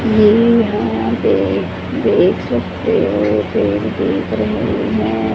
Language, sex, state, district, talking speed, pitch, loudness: Hindi, female, Haryana, Charkhi Dadri, 110 wpm, 110 Hz, -15 LUFS